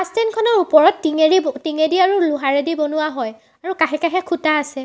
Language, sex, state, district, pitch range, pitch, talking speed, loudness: Assamese, female, Assam, Sonitpur, 300-365 Hz, 315 Hz, 175 wpm, -17 LUFS